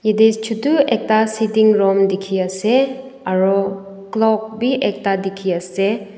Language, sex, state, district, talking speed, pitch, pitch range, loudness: Nagamese, female, Nagaland, Dimapur, 125 wpm, 215 Hz, 195-220 Hz, -17 LUFS